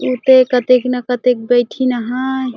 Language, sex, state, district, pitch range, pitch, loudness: Chhattisgarhi, female, Chhattisgarh, Jashpur, 245-255 Hz, 250 Hz, -14 LUFS